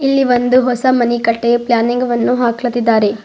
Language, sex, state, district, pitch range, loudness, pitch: Kannada, female, Karnataka, Bidar, 235-250 Hz, -14 LUFS, 240 Hz